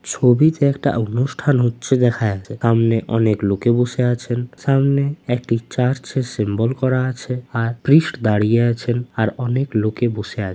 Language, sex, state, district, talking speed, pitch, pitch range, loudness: Bengali, male, West Bengal, Jalpaiguri, 155 wpm, 120 Hz, 115-130 Hz, -18 LUFS